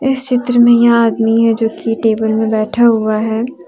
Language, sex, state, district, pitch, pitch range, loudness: Hindi, female, Jharkhand, Deoghar, 225 Hz, 220-240 Hz, -13 LUFS